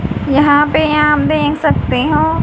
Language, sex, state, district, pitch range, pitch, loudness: Hindi, female, Haryana, Jhajjar, 290-300 Hz, 295 Hz, -13 LUFS